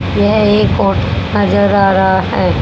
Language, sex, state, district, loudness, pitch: Hindi, female, Haryana, Rohtak, -12 LUFS, 105 Hz